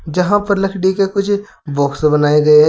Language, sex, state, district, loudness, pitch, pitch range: Hindi, male, Uttar Pradesh, Saharanpur, -15 LUFS, 180 Hz, 150-200 Hz